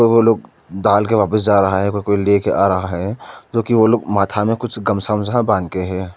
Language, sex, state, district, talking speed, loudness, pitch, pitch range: Hindi, male, Arunachal Pradesh, Lower Dibang Valley, 260 wpm, -16 LUFS, 105 Hz, 100-110 Hz